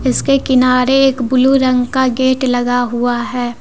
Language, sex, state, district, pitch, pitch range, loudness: Hindi, female, Jharkhand, Deoghar, 255 Hz, 245-260 Hz, -13 LUFS